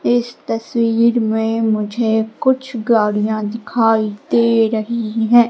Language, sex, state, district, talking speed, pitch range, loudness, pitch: Hindi, female, Madhya Pradesh, Katni, 110 wpm, 220-235 Hz, -17 LUFS, 225 Hz